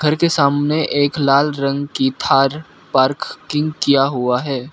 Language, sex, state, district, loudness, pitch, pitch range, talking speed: Hindi, male, Arunachal Pradesh, Lower Dibang Valley, -17 LUFS, 140 Hz, 135-150 Hz, 150 wpm